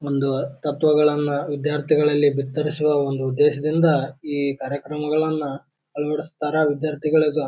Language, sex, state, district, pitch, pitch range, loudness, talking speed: Kannada, male, Karnataka, Bijapur, 150 Hz, 140-150 Hz, -21 LUFS, 90 wpm